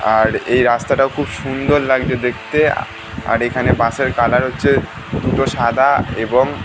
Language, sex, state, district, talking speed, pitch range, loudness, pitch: Bengali, male, West Bengal, North 24 Parganas, 145 wpm, 120-135 Hz, -16 LUFS, 125 Hz